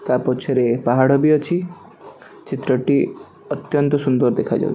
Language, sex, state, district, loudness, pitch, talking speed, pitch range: Odia, male, Odisha, Khordha, -18 LUFS, 140 Hz, 125 wpm, 125-155 Hz